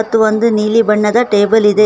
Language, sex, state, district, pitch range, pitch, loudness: Kannada, female, Karnataka, Koppal, 210-225 Hz, 215 Hz, -12 LUFS